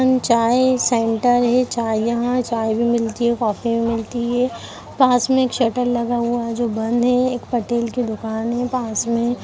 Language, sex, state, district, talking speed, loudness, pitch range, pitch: Hindi, female, Chhattisgarh, Kabirdham, 205 wpm, -19 LUFS, 230-245 Hz, 235 Hz